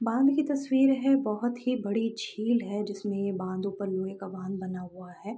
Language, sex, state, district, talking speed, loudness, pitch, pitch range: Hindi, female, Uttar Pradesh, Jalaun, 210 wpm, -29 LUFS, 210 Hz, 195-240 Hz